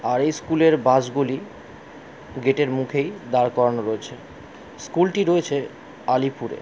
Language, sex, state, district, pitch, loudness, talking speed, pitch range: Bengali, male, West Bengal, Jalpaiguri, 135 Hz, -22 LUFS, 135 wpm, 125-150 Hz